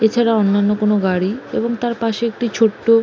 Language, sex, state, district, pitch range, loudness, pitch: Bengali, female, West Bengal, Jalpaiguri, 210-235 Hz, -17 LUFS, 225 Hz